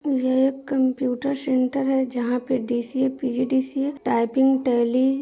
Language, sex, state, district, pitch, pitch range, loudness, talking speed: Hindi, male, Jharkhand, Sahebganj, 260 Hz, 250-270 Hz, -22 LUFS, 195 wpm